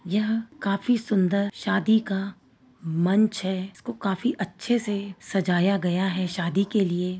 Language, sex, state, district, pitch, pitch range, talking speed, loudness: Hindi, female, Uttar Pradesh, Varanasi, 195 Hz, 185-215 Hz, 140 wpm, -25 LUFS